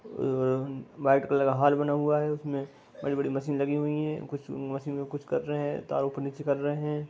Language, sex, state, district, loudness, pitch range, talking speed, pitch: Hindi, female, Bihar, Darbhanga, -29 LUFS, 140-150 Hz, 230 wpm, 145 Hz